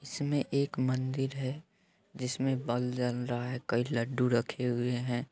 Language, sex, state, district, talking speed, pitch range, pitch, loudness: Hindi, male, Bihar, Saran, 160 wpm, 125-140 Hz, 130 Hz, -32 LUFS